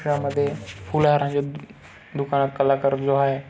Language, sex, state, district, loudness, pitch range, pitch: Marathi, male, Maharashtra, Solapur, -22 LUFS, 135-145 Hz, 140 Hz